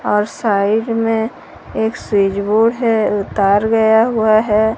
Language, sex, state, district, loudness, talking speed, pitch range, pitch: Hindi, female, Odisha, Sambalpur, -15 LUFS, 150 wpm, 205-225 Hz, 220 Hz